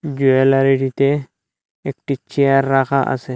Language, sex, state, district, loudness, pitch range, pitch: Bengali, male, Assam, Hailakandi, -16 LUFS, 130-140 Hz, 135 Hz